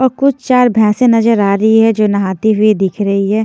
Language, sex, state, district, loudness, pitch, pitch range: Hindi, female, Haryana, Jhajjar, -11 LUFS, 220 Hz, 205-230 Hz